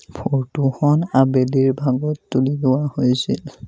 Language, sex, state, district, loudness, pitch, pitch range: Assamese, male, Assam, Sonitpur, -19 LUFS, 135 Hz, 130-145 Hz